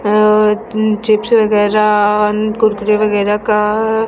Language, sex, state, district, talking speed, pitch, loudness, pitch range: Hindi, female, Chhattisgarh, Raipur, 90 wpm, 215 Hz, -13 LUFS, 210-215 Hz